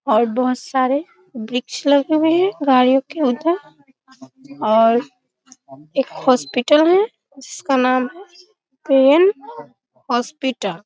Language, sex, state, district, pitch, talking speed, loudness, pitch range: Hindi, female, Bihar, Muzaffarpur, 265 Hz, 115 wpm, -17 LUFS, 250-310 Hz